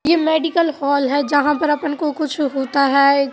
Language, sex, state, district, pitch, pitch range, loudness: Hindi, female, Bihar, Madhepura, 290 Hz, 280-310 Hz, -17 LUFS